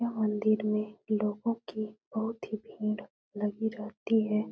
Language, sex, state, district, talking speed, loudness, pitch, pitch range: Hindi, female, Uttar Pradesh, Etah, 145 wpm, -32 LUFS, 215 Hz, 210-220 Hz